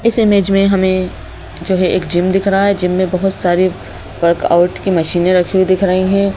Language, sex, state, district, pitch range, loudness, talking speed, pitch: Hindi, male, Madhya Pradesh, Bhopal, 175-195 Hz, -13 LUFS, 215 wpm, 185 Hz